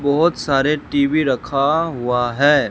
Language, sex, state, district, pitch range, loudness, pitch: Hindi, male, Rajasthan, Bikaner, 135-150 Hz, -18 LUFS, 140 Hz